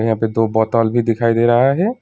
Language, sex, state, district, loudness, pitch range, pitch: Hindi, male, West Bengal, Alipurduar, -16 LUFS, 110-120 Hz, 115 Hz